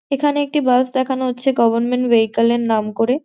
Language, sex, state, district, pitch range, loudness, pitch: Bengali, female, West Bengal, Jhargram, 230-270 Hz, -17 LUFS, 250 Hz